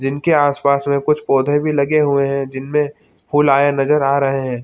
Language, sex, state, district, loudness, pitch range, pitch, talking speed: Hindi, male, Chhattisgarh, Bilaspur, -16 LUFS, 135-145 Hz, 140 Hz, 205 wpm